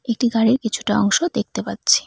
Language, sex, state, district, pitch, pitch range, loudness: Bengali, female, West Bengal, Cooch Behar, 230 Hz, 225-250 Hz, -19 LUFS